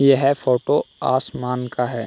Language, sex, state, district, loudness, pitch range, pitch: Hindi, male, Uttar Pradesh, Hamirpur, -20 LUFS, 125-135 Hz, 125 Hz